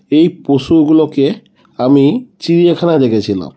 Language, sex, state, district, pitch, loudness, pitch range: Bengali, female, West Bengal, Kolkata, 155 Hz, -12 LUFS, 140-170 Hz